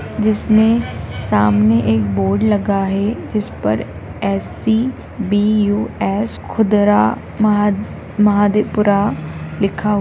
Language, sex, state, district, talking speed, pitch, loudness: Hindi, female, Bihar, Madhepura, 90 wpm, 205 Hz, -16 LUFS